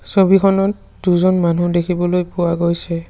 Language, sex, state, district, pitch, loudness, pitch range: Assamese, male, Assam, Sonitpur, 175 Hz, -16 LUFS, 170-190 Hz